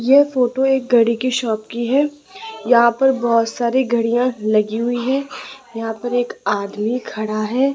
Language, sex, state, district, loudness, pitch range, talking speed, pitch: Hindi, female, Rajasthan, Jaipur, -18 LUFS, 225-265 Hz, 170 wpm, 240 Hz